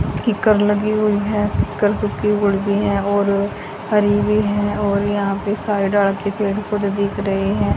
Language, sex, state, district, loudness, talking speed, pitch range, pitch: Hindi, female, Haryana, Jhajjar, -18 LUFS, 180 wpm, 200-210 Hz, 205 Hz